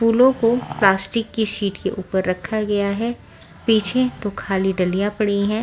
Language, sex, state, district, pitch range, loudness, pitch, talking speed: Hindi, female, Bihar, Patna, 195-230 Hz, -19 LUFS, 205 Hz, 170 wpm